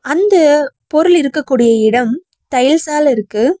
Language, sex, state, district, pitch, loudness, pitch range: Tamil, female, Tamil Nadu, Nilgiris, 290 Hz, -12 LUFS, 245-310 Hz